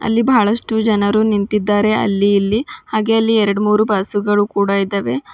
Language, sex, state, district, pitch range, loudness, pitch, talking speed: Kannada, female, Karnataka, Bidar, 205-225 Hz, -15 LUFS, 210 Hz, 155 wpm